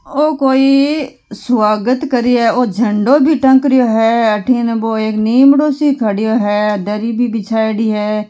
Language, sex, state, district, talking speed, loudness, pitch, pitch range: Marwari, female, Rajasthan, Nagaur, 130 wpm, -13 LUFS, 235 Hz, 220-270 Hz